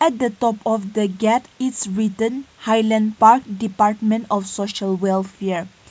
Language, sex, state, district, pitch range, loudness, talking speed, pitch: English, female, Nagaland, Kohima, 200-225 Hz, -20 LUFS, 140 wpm, 215 Hz